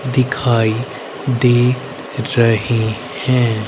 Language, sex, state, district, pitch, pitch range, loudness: Hindi, male, Haryana, Rohtak, 125 Hz, 115-130 Hz, -17 LUFS